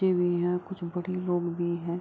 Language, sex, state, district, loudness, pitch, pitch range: Hindi, female, Bihar, Kishanganj, -29 LUFS, 175 Hz, 170-180 Hz